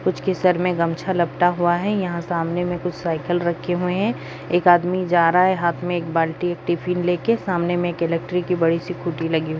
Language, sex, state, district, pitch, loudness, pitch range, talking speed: Hindi, female, Bihar, Jahanabad, 175 Hz, -21 LUFS, 170-180 Hz, 230 wpm